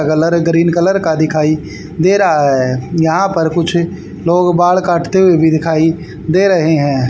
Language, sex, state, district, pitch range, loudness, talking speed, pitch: Hindi, male, Haryana, Rohtak, 155-175 Hz, -13 LUFS, 170 wpm, 165 Hz